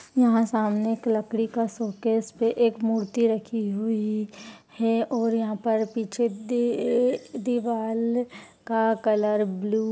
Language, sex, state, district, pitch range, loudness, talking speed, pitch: Hindi, female, Uttar Pradesh, Etah, 215-230 Hz, -25 LUFS, 125 wpm, 225 Hz